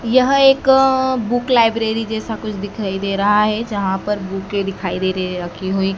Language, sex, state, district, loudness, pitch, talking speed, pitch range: Hindi, female, Madhya Pradesh, Dhar, -17 LUFS, 210 Hz, 190 wpm, 195-230 Hz